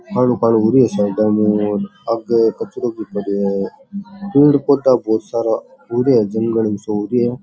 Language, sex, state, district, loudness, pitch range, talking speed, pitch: Rajasthani, male, Rajasthan, Churu, -17 LUFS, 105-125 Hz, 180 wpm, 115 Hz